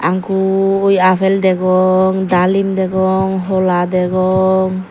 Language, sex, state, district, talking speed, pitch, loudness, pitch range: Chakma, female, Tripura, Dhalai, 85 wpm, 190 Hz, -14 LUFS, 185-190 Hz